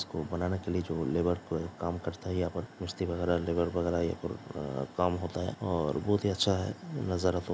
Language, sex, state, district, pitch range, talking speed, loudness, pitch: Hindi, male, Bihar, Samastipur, 85-90 Hz, 230 wpm, -32 LUFS, 90 Hz